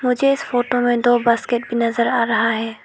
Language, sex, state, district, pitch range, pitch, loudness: Hindi, female, Arunachal Pradesh, Lower Dibang Valley, 230-245 Hz, 240 Hz, -18 LUFS